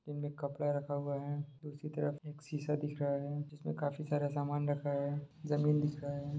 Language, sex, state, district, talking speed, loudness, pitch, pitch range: Hindi, male, Jharkhand, Sahebganj, 205 wpm, -38 LUFS, 145 Hz, 145-150 Hz